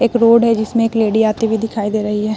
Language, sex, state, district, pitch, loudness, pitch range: Hindi, female, Bihar, Vaishali, 220 Hz, -15 LUFS, 215-230 Hz